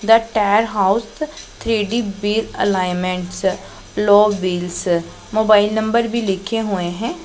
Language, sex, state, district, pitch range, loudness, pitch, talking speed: Hindi, female, Punjab, Pathankot, 190-225 Hz, -18 LUFS, 210 Hz, 125 wpm